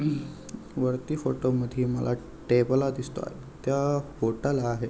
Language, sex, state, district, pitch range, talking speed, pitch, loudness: Marathi, male, Maharashtra, Aurangabad, 125-145 Hz, 110 wpm, 130 Hz, -28 LUFS